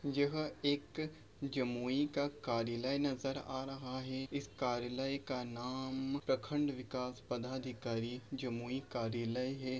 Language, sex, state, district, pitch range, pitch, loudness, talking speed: Hindi, male, Bihar, Jamui, 125-140 Hz, 130 Hz, -39 LUFS, 120 wpm